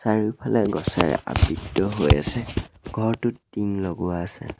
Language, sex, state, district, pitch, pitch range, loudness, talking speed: Assamese, male, Assam, Sonitpur, 110 Hz, 95-115 Hz, -24 LUFS, 115 wpm